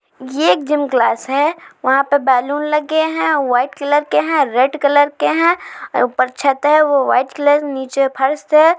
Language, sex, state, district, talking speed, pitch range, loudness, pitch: Hindi, female, Uttar Pradesh, Jalaun, 175 wpm, 265-300 Hz, -15 LUFS, 285 Hz